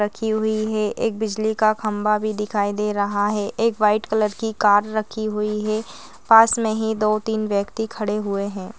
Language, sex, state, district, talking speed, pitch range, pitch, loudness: Hindi, female, Chhattisgarh, Balrampur, 190 wpm, 210-220 Hz, 215 Hz, -21 LUFS